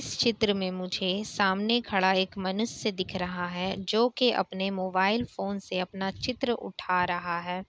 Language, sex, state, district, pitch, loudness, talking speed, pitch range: Hindi, female, Bihar, Kishanganj, 190 Hz, -28 LUFS, 180 wpm, 185-215 Hz